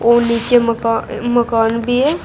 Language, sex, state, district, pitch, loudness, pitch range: Hindi, female, Uttar Pradesh, Shamli, 235 Hz, -15 LUFS, 230-240 Hz